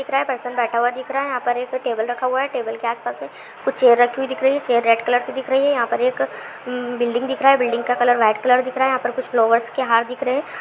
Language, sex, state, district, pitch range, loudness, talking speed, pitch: Hindi, female, Bihar, Supaul, 240-265 Hz, -19 LUFS, 335 wpm, 250 Hz